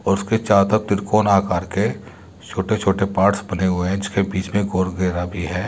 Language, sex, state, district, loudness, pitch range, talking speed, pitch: Hindi, male, Uttar Pradesh, Muzaffarnagar, -20 LUFS, 95-100 Hz, 200 wpm, 95 Hz